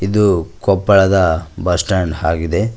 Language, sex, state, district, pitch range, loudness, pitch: Kannada, male, Karnataka, Koppal, 85-100 Hz, -15 LUFS, 95 Hz